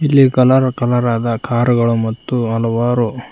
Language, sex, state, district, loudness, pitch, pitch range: Kannada, male, Karnataka, Koppal, -15 LUFS, 120 Hz, 115-125 Hz